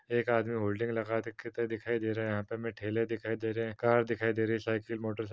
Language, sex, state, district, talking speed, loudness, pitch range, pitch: Hindi, male, Uttar Pradesh, Varanasi, 270 wpm, -33 LUFS, 110-115 Hz, 115 Hz